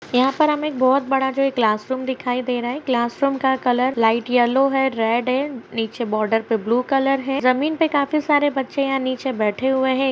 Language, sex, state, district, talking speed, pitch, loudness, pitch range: Hindi, female, Uttar Pradesh, Jyotiba Phule Nagar, 245 wpm, 260 Hz, -20 LUFS, 240-275 Hz